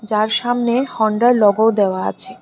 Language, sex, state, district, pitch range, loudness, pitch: Bengali, female, Tripura, West Tripura, 215-245 Hz, -16 LUFS, 225 Hz